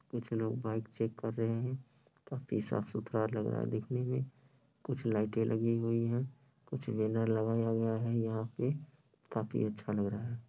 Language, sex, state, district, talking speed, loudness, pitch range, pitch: Hindi, male, Bihar, Sitamarhi, 185 wpm, -36 LUFS, 110-130 Hz, 115 Hz